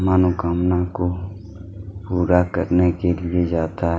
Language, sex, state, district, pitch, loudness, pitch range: Hindi, male, Chhattisgarh, Kabirdham, 90 Hz, -20 LUFS, 90-95 Hz